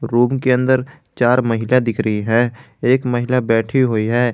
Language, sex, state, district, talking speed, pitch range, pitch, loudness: Hindi, male, Jharkhand, Garhwa, 180 wpm, 115-125 Hz, 120 Hz, -17 LUFS